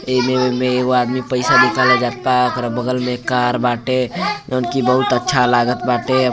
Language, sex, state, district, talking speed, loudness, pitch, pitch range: Bhojpuri, male, Uttar Pradesh, Gorakhpur, 200 wpm, -16 LUFS, 125 Hz, 125-130 Hz